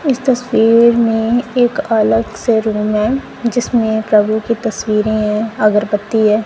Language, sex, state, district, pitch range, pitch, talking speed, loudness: Hindi, female, Punjab, Kapurthala, 215-235 Hz, 225 Hz, 140 wpm, -14 LUFS